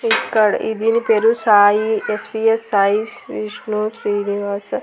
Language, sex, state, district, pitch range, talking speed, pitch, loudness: Telugu, female, Andhra Pradesh, Annamaya, 205-225 Hz, 125 wpm, 215 Hz, -17 LUFS